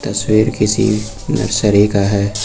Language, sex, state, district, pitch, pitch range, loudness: Hindi, male, Uttar Pradesh, Lucknow, 105 Hz, 100-110 Hz, -15 LUFS